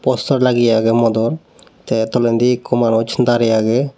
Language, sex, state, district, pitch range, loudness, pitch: Chakma, male, Tripura, Dhalai, 115-125 Hz, -15 LUFS, 120 Hz